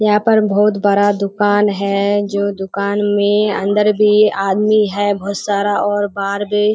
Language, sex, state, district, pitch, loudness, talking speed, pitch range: Hindi, female, Bihar, Kishanganj, 205 Hz, -15 LUFS, 170 wpm, 200-210 Hz